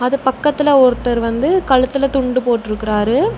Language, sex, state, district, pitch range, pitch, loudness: Tamil, female, Tamil Nadu, Namakkal, 235-275 Hz, 255 Hz, -15 LUFS